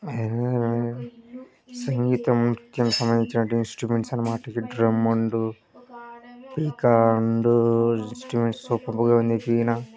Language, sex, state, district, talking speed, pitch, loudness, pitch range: Telugu, male, Andhra Pradesh, Krishna, 80 wpm, 115 Hz, -23 LUFS, 115-125 Hz